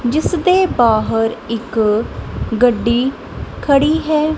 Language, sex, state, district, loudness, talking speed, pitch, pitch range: Punjabi, female, Punjab, Kapurthala, -16 LUFS, 95 wpm, 245 Hz, 225-305 Hz